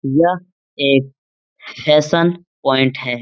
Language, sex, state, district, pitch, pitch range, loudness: Hindi, male, Bihar, Lakhisarai, 145 Hz, 135-175 Hz, -16 LUFS